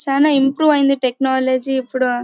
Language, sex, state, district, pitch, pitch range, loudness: Telugu, female, Karnataka, Bellary, 265 Hz, 260-275 Hz, -16 LUFS